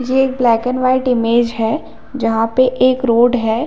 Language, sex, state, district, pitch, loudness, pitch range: Hindi, female, Chhattisgarh, Bilaspur, 245 Hz, -15 LUFS, 230-255 Hz